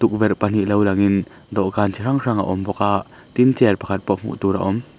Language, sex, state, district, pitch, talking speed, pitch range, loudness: Mizo, male, Mizoram, Aizawl, 100 Hz, 240 wpm, 100-115 Hz, -19 LUFS